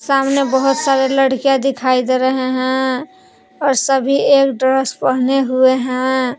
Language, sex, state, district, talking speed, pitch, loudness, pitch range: Hindi, female, Jharkhand, Palamu, 140 wpm, 265 Hz, -15 LUFS, 260-275 Hz